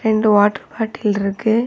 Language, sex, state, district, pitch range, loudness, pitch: Tamil, female, Tamil Nadu, Kanyakumari, 205-225 Hz, -17 LUFS, 215 Hz